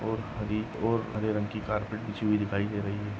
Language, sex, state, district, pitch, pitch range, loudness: Hindi, male, Maharashtra, Nagpur, 105 Hz, 105-110 Hz, -31 LUFS